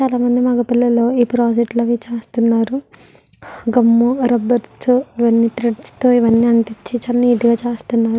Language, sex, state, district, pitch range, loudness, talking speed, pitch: Telugu, female, Andhra Pradesh, Guntur, 230-245 Hz, -16 LUFS, 145 wpm, 240 Hz